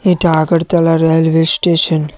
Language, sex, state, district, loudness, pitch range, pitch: Bengali, male, Tripura, West Tripura, -12 LUFS, 160-170 Hz, 165 Hz